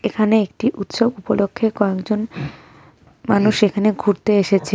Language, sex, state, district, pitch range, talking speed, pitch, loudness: Bengali, female, West Bengal, Cooch Behar, 200-220 Hz, 115 wpm, 210 Hz, -18 LUFS